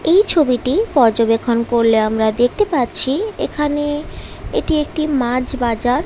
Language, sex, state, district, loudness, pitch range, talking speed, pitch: Bengali, female, West Bengal, Paschim Medinipur, -16 LUFS, 235-300 Hz, 120 wpm, 255 Hz